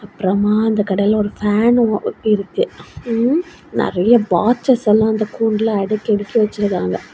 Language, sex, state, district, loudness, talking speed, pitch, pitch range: Tamil, female, Tamil Nadu, Kanyakumari, -17 LUFS, 125 wpm, 215 Hz, 205-225 Hz